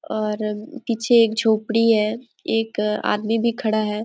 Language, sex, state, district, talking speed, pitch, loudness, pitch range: Hindi, female, Jharkhand, Sahebganj, 150 wpm, 220 Hz, -21 LUFS, 215-230 Hz